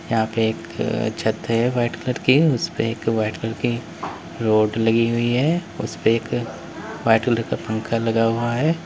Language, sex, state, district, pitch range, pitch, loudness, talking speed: Hindi, male, Uttar Pradesh, Lalitpur, 115-120 Hz, 115 Hz, -21 LUFS, 170 wpm